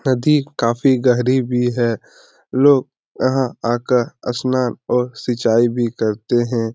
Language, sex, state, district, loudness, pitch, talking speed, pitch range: Hindi, male, Bihar, Lakhisarai, -18 LUFS, 125 Hz, 125 wpm, 120-130 Hz